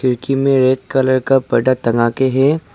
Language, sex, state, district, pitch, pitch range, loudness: Hindi, male, Arunachal Pradesh, Lower Dibang Valley, 130 Hz, 130-135 Hz, -15 LUFS